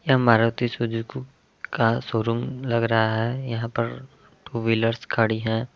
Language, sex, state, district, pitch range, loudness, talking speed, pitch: Hindi, male, Uttar Pradesh, Varanasi, 115-120 Hz, -24 LUFS, 145 wpm, 115 Hz